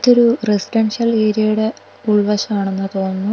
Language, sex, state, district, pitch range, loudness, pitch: Malayalam, female, Kerala, Wayanad, 205-225 Hz, -17 LUFS, 215 Hz